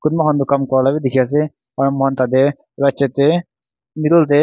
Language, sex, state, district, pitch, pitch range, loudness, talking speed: Nagamese, male, Nagaland, Kohima, 140 Hz, 135-150 Hz, -16 LUFS, 245 wpm